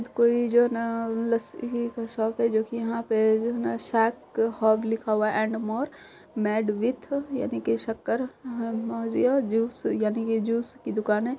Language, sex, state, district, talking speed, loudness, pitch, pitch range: Hindi, female, Bihar, Saharsa, 165 wpm, -26 LUFS, 230 Hz, 220-240 Hz